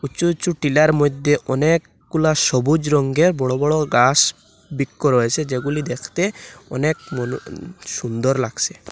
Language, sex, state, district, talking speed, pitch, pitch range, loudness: Bengali, male, Assam, Hailakandi, 120 wpm, 145 Hz, 130-155 Hz, -19 LUFS